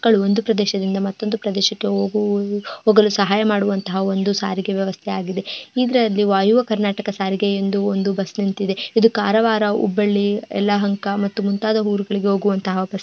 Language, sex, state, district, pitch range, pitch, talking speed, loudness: Kannada, female, Karnataka, Dharwad, 195-210 Hz, 205 Hz, 140 wpm, -19 LUFS